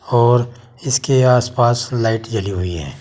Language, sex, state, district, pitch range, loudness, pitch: Hindi, male, Uttar Pradesh, Saharanpur, 115-125 Hz, -16 LUFS, 120 Hz